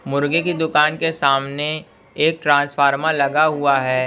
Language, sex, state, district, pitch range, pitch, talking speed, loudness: Hindi, male, Bihar, West Champaran, 140-155 Hz, 145 Hz, 145 wpm, -18 LUFS